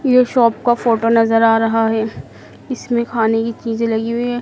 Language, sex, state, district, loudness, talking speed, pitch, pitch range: Hindi, female, Madhya Pradesh, Dhar, -16 LUFS, 205 wpm, 230 Hz, 225-240 Hz